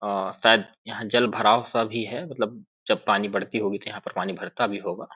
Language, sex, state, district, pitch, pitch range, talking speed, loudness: Hindi, male, Chhattisgarh, Korba, 105 Hz, 100-115 Hz, 220 wpm, -24 LUFS